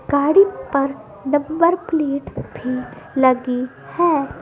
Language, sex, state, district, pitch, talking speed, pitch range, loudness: Hindi, female, Madhya Pradesh, Dhar, 280 Hz, 95 wpm, 260-320 Hz, -19 LUFS